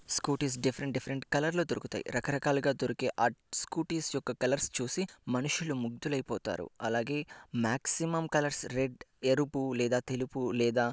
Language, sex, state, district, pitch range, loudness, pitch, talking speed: Telugu, male, Andhra Pradesh, Guntur, 125-145 Hz, -33 LUFS, 135 Hz, 145 wpm